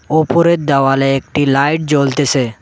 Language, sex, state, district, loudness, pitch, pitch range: Bengali, male, West Bengal, Cooch Behar, -13 LUFS, 145 Hz, 135-155 Hz